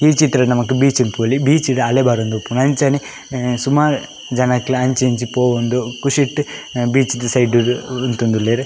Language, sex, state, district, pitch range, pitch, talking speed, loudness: Tulu, male, Karnataka, Dakshina Kannada, 120-135 Hz, 125 Hz, 150 wpm, -16 LUFS